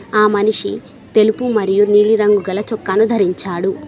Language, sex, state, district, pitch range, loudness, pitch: Telugu, female, Telangana, Mahabubabad, 195-220 Hz, -15 LUFS, 210 Hz